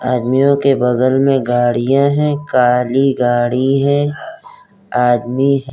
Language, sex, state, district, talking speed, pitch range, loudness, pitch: Hindi, female, Uttar Pradesh, Hamirpur, 115 wpm, 125-140 Hz, -14 LUFS, 135 Hz